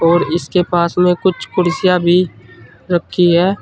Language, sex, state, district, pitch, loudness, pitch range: Hindi, male, Uttar Pradesh, Saharanpur, 175 Hz, -14 LUFS, 170-180 Hz